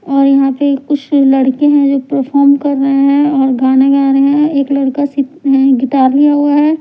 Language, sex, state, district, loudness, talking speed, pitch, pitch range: Hindi, female, Punjab, Pathankot, -11 LUFS, 210 wpm, 275 Hz, 270-285 Hz